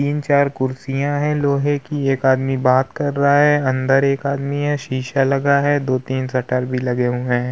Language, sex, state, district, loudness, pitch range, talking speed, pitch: Hindi, male, Uttar Pradesh, Hamirpur, -18 LUFS, 130-145 Hz, 205 wpm, 135 Hz